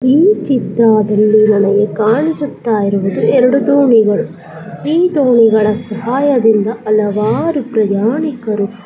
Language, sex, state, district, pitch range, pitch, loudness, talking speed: Kannada, female, Karnataka, Chamarajanagar, 210-265 Hz, 220 Hz, -12 LUFS, 75 wpm